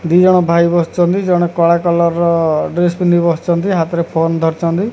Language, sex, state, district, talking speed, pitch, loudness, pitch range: Odia, male, Odisha, Khordha, 170 wpm, 170 Hz, -13 LUFS, 170-175 Hz